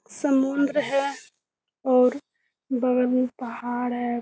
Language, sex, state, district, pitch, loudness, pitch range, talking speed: Hindi, female, Bihar, Jamui, 255 Hz, -24 LUFS, 245-280 Hz, 100 wpm